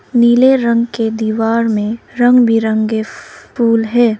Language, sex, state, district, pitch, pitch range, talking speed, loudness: Hindi, female, Arunachal Pradesh, Lower Dibang Valley, 230 Hz, 220-240 Hz, 130 wpm, -13 LUFS